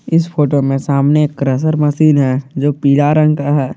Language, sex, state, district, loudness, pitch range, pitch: Hindi, male, Jharkhand, Garhwa, -13 LUFS, 140-150 Hz, 145 Hz